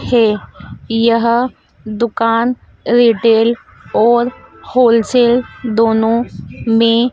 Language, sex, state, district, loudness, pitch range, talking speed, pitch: Hindi, female, Madhya Pradesh, Dhar, -14 LUFS, 225-240 Hz, 65 wpm, 230 Hz